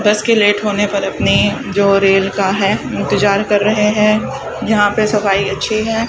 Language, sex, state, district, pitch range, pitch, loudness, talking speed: Hindi, female, Rajasthan, Bikaner, 195-215 Hz, 205 Hz, -14 LUFS, 185 wpm